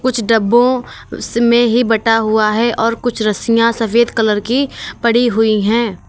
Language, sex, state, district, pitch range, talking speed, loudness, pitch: Hindi, female, Uttar Pradesh, Lalitpur, 225-235 Hz, 160 wpm, -14 LUFS, 230 Hz